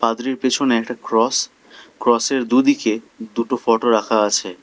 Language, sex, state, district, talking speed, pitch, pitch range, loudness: Bengali, male, West Bengal, Alipurduar, 130 wpm, 115 Hz, 115-130 Hz, -18 LUFS